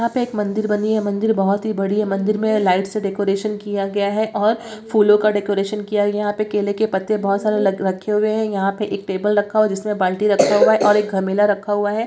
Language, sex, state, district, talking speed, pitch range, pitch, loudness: Hindi, female, Bihar, Jamui, 280 wpm, 200-215 Hz, 210 Hz, -19 LUFS